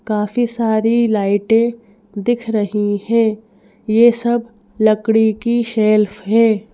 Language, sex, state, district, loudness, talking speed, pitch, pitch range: Hindi, female, Madhya Pradesh, Bhopal, -16 LUFS, 105 wpm, 220 Hz, 210-230 Hz